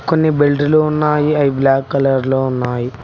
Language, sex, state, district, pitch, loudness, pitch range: Telugu, male, Telangana, Mahabubabad, 140 Hz, -15 LUFS, 130-150 Hz